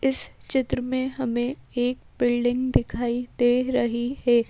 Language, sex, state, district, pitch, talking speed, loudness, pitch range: Hindi, female, Madhya Pradesh, Bhopal, 245 Hz, 135 wpm, -24 LUFS, 240-255 Hz